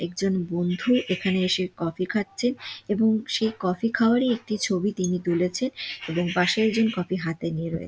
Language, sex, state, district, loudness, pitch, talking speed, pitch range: Bengali, female, West Bengal, Dakshin Dinajpur, -25 LUFS, 185 Hz, 150 wpm, 180-220 Hz